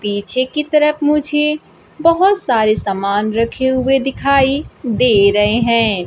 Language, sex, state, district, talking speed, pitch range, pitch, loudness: Hindi, female, Bihar, Kaimur, 130 wpm, 215-295 Hz, 255 Hz, -15 LUFS